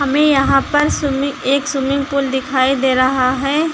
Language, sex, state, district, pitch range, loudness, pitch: Hindi, female, Uttar Pradesh, Lucknow, 265-285 Hz, -15 LUFS, 275 Hz